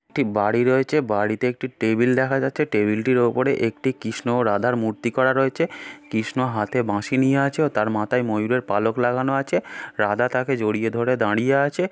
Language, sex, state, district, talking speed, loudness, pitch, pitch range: Bengali, male, West Bengal, Dakshin Dinajpur, 180 wpm, -22 LUFS, 125 Hz, 110-130 Hz